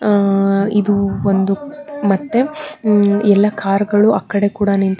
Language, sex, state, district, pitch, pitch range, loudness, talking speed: Kannada, female, Karnataka, Bangalore, 205 Hz, 195-215 Hz, -15 LUFS, 120 wpm